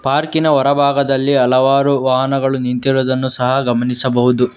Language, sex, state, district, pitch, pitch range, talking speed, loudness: Kannada, male, Karnataka, Bangalore, 135 Hz, 125-140 Hz, 105 wpm, -14 LUFS